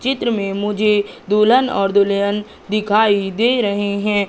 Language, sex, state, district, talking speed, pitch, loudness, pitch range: Hindi, female, Madhya Pradesh, Katni, 140 wpm, 210 Hz, -17 LUFS, 200-220 Hz